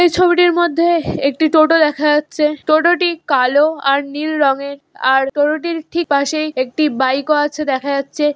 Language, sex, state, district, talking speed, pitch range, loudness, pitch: Bengali, female, West Bengal, Jhargram, 160 wpm, 280-325 Hz, -15 LUFS, 300 Hz